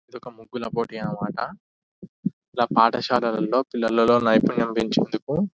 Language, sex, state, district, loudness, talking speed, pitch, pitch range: Telugu, male, Telangana, Nalgonda, -23 LUFS, 130 wpm, 115 Hz, 115-125 Hz